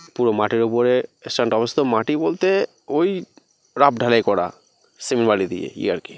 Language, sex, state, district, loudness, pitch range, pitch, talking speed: Bengali, male, West Bengal, North 24 Parganas, -20 LUFS, 115-150 Hz, 125 Hz, 155 wpm